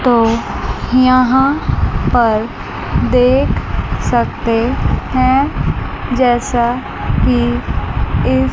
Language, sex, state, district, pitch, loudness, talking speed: Hindi, female, Chandigarh, Chandigarh, 240 Hz, -15 LUFS, 65 wpm